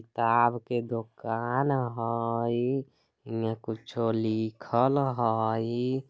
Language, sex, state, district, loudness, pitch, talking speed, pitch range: Bajjika, male, Bihar, Vaishali, -29 LUFS, 115 Hz, 80 wpm, 115-125 Hz